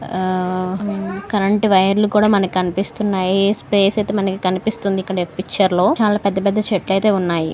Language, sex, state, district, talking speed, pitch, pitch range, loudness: Telugu, female, Andhra Pradesh, Anantapur, 165 wpm, 195 Hz, 185-205 Hz, -17 LUFS